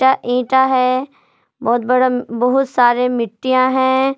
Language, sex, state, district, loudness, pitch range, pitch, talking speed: Hindi, female, Jharkhand, Palamu, -16 LUFS, 245-265 Hz, 255 Hz, 115 wpm